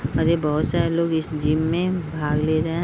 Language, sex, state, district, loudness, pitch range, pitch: Hindi, female, Bihar, Bhagalpur, -22 LUFS, 150-165 Hz, 160 Hz